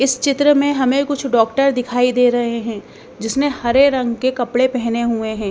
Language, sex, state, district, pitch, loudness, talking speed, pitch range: Hindi, female, Bihar, Patna, 250 Hz, -17 LUFS, 195 wpm, 235-275 Hz